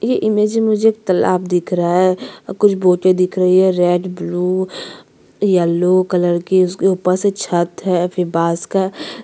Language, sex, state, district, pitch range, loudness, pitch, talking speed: Hindi, female, Chhattisgarh, Sukma, 180-195 Hz, -16 LUFS, 185 Hz, 180 wpm